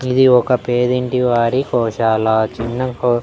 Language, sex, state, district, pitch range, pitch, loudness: Telugu, male, Andhra Pradesh, Annamaya, 115-125 Hz, 125 Hz, -16 LUFS